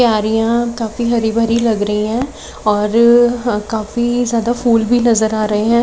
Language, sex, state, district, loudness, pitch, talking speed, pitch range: Hindi, female, Chhattisgarh, Raipur, -15 LUFS, 230 Hz, 165 wpm, 220-240 Hz